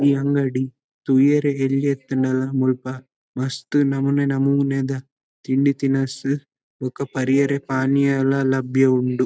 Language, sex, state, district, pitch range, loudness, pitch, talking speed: Tulu, male, Karnataka, Dakshina Kannada, 130-140 Hz, -20 LUFS, 135 Hz, 105 wpm